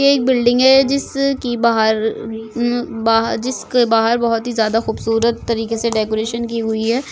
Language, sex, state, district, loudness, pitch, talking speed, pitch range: Hindi, female, Goa, North and South Goa, -17 LUFS, 230 Hz, 170 wpm, 225-245 Hz